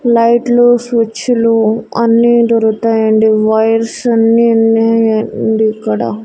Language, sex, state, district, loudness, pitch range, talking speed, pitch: Telugu, female, Andhra Pradesh, Annamaya, -11 LUFS, 220-235 Hz, 95 wpm, 225 Hz